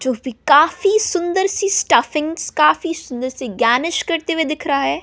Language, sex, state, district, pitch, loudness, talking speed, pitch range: Hindi, female, Bihar, West Champaran, 315 Hz, -17 LUFS, 165 wpm, 260-345 Hz